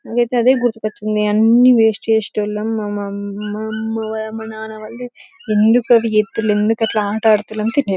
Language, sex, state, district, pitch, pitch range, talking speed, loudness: Telugu, female, Telangana, Karimnagar, 220 Hz, 210-225 Hz, 100 wpm, -17 LUFS